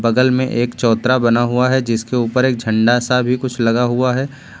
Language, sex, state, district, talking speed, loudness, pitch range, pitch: Hindi, male, Uttar Pradesh, Lucknow, 220 wpm, -16 LUFS, 120-130 Hz, 125 Hz